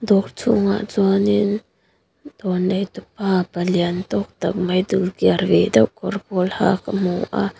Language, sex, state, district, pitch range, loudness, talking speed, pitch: Mizo, female, Mizoram, Aizawl, 180-205 Hz, -20 LUFS, 160 wpm, 190 Hz